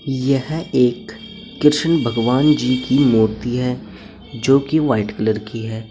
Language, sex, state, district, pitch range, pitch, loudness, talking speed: Hindi, male, Uttar Pradesh, Saharanpur, 115-140 Hz, 125 Hz, -17 LUFS, 140 wpm